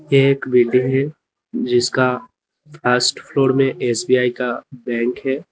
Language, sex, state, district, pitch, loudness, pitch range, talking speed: Hindi, male, Uttar Pradesh, Lalitpur, 130 Hz, -18 LUFS, 125-135 Hz, 130 wpm